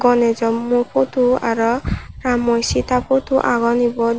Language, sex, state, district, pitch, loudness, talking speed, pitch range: Chakma, male, Tripura, Unakoti, 245 Hz, -18 LUFS, 145 wpm, 235-250 Hz